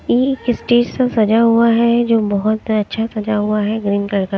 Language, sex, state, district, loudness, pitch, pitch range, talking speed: Hindi, female, Haryana, Rohtak, -16 LUFS, 220 Hz, 210-235 Hz, 235 wpm